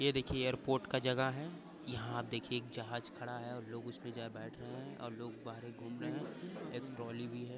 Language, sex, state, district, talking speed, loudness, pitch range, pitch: Hindi, male, Uttar Pradesh, Varanasi, 220 wpm, -41 LUFS, 120-130 Hz, 120 Hz